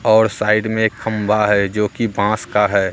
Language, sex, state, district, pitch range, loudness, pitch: Hindi, male, Bihar, Katihar, 105-110 Hz, -17 LUFS, 105 Hz